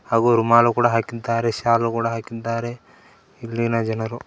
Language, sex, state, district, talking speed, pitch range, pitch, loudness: Kannada, male, Karnataka, Koppal, 125 wpm, 115-120 Hz, 115 Hz, -20 LUFS